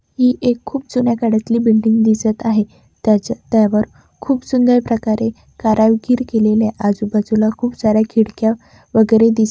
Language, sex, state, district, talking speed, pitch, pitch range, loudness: Marathi, female, Maharashtra, Chandrapur, 125 wpm, 225 Hz, 215-240 Hz, -16 LUFS